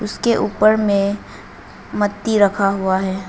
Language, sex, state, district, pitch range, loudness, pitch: Hindi, female, Arunachal Pradesh, Lower Dibang Valley, 195-210 Hz, -17 LUFS, 205 Hz